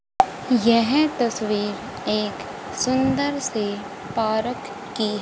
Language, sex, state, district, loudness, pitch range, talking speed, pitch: Hindi, female, Haryana, Rohtak, -23 LUFS, 210-260 Hz, 80 wpm, 230 Hz